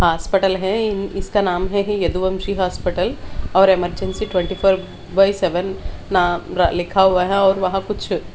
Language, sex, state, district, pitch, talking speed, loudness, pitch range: Hindi, female, Haryana, Charkhi Dadri, 190 Hz, 150 wpm, -19 LUFS, 180-195 Hz